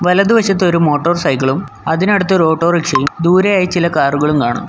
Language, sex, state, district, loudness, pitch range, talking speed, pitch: Malayalam, male, Kerala, Kollam, -13 LUFS, 150-185 Hz, 140 wpm, 170 Hz